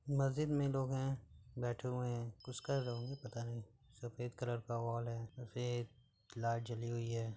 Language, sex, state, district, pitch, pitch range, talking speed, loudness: Bhojpuri, male, Uttar Pradesh, Gorakhpur, 120 Hz, 115-125 Hz, 185 wpm, -41 LUFS